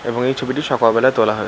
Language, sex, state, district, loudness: Bengali, male, West Bengal, Malda, -17 LUFS